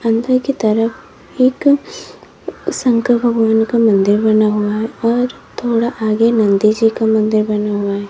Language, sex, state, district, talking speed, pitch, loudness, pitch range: Hindi, female, Uttar Pradesh, Lalitpur, 150 wpm, 225 Hz, -15 LUFS, 215-240 Hz